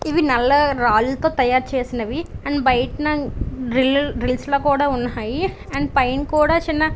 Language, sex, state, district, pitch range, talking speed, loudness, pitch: Telugu, female, Andhra Pradesh, Visakhapatnam, 250-300 Hz, 155 wpm, -19 LUFS, 275 Hz